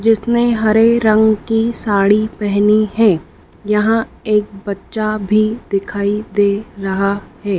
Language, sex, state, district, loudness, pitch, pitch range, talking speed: Hindi, female, Madhya Pradesh, Dhar, -15 LUFS, 210 Hz, 200-220 Hz, 125 wpm